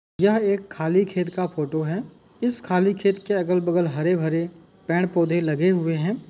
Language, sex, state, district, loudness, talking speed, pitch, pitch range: Hindi, male, Uttar Pradesh, Muzaffarnagar, -23 LUFS, 160 wpm, 180 Hz, 165-195 Hz